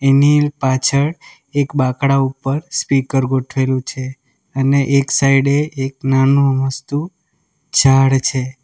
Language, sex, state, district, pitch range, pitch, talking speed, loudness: Gujarati, male, Gujarat, Valsad, 135-140 Hz, 135 Hz, 110 wpm, -16 LUFS